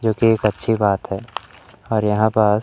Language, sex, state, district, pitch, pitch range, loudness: Hindi, male, Madhya Pradesh, Umaria, 110 Hz, 105-110 Hz, -19 LUFS